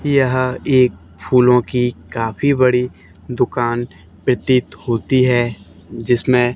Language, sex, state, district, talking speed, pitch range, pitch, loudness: Hindi, male, Haryana, Charkhi Dadri, 100 wpm, 110-130 Hz, 125 Hz, -17 LUFS